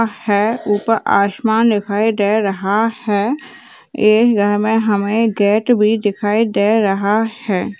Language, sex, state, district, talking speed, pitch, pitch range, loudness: Hindi, female, Uttarakhand, Uttarkashi, 130 wpm, 215 Hz, 205-225 Hz, -15 LUFS